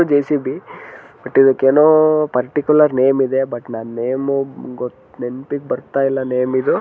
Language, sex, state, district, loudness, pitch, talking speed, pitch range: Kannada, male, Karnataka, Mysore, -17 LUFS, 135 Hz, 140 wpm, 125-145 Hz